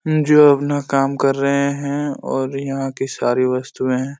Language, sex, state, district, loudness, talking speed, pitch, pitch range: Hindi, male, Jharkhand, Jamtara, -18 LUFS, 155 wpm, 140 Hz, 135-145 Hz